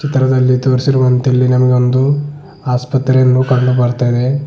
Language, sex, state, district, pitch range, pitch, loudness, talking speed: Kannada, male, Karnataka, Bidar, 125-135 Hz, 130 Hz, -12 LUFS, 80 wpm